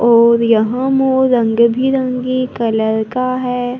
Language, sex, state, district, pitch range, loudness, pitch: Hindi, female, Maharashtra, Gondia, 230-255 Hz, -14 LUFS, 245 Hz